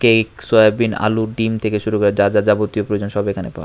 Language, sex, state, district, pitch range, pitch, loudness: Bengali, male, Tripura, West Tripura, 105-110 Hz, 105 Hz, -17 LUFS